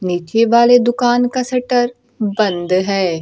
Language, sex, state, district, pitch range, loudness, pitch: Hindi, female, Bihar, Kaimur, 190-245 Hz, -15 LUFS, 235 Hz